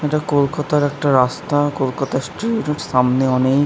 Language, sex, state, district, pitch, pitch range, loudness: Bengali, male, West Bengal, Kolkata, 145 Hz, 130-150 Hz, -18 LUFS